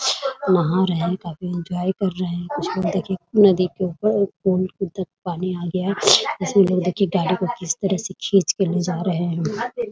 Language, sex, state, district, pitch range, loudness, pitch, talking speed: Hindi, female, Bihar, Muzaffarpur, 180-195 Hz, -21 LUFS, 185 Hz, 205 wpm